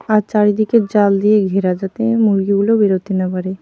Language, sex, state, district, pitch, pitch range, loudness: Bengali, female, West Bengal, Alipurduar, 205 Hz, 195-215 Hz, -15 LUFS